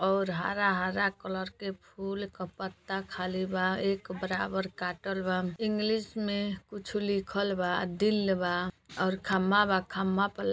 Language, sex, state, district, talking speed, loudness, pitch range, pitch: Bhojpuri, female, Uttar Pradesh, Deoria, 155 wpm, -31 LUFS, 185-200 Hz, 190 Hz